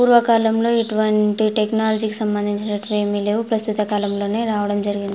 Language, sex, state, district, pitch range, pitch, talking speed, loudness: Telugu, female, Andhra Pradesh, Anantapur, 205-220 Hz, 215 Hz, 115 wpm, -18 LUFS